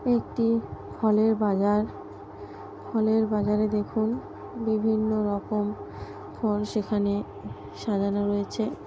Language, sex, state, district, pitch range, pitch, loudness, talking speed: Bengali, female, West Bengal, North 24 Parganas, 205-220 Hz, 210 Hz, -26 LUFS, 80 wpm